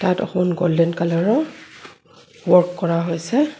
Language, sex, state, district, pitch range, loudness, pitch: Assamese, female, Assam, Kamrup Metropolitan, 170-190 Hz, -19 LUFS, 180 Hz